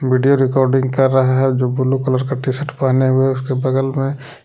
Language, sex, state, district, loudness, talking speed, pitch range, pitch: Hindi, male, Jharkhand, Palamu, -16 LUFS, 215 wpm, 130-135 Hz, 130 Hz